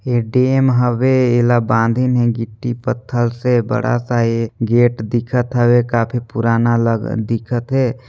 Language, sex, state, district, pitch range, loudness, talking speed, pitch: Hindi, male, Chhattisgarh, Sarguja, 115-125 Hz, -16 LUFS, 140 wpm, 120 Hz